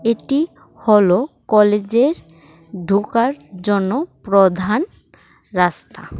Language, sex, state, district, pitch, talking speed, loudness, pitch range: Bengali, female, Tripura, West Tripura, 210 Hz, 70 wpm, -17 LUFS, 185-240 Hz